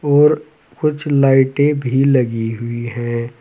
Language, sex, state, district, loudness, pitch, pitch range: Hindi, male, Uttar Pradesh, Saharanpur, -16 LUFS, 135 Hz, 120-150 Hz